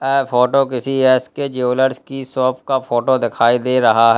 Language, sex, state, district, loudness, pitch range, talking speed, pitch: Hindi, male, Uttar Pradesh, Lalitpur, -16 LUFS, 125-135 Hz, 185 wpm, 130 Hz